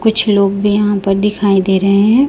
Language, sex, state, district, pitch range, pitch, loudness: Hindi, female, Chhattisgarh, Raipur, 195-210 Hz, 205 Hz, -12 LUFS